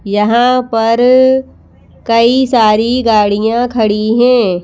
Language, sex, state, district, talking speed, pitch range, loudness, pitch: Hindi, female, Madhya Pradesh, Bhopal, 90 wpm, 215-250 Hz, -11 LUFS, 230 Hz